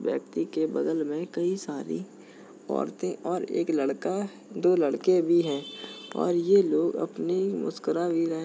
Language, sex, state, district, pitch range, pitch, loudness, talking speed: Hindi, male, Uttar Pradesh, Jalaun, 160-185 Hz, 170 Hz, -27 LUFS, 165 wpm